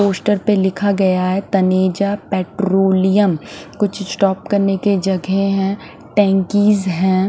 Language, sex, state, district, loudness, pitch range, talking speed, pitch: Hindi, male, Punjab, Fazilka, -16 LUFS, 190-200 Hz, 125 wpm, 195 Hz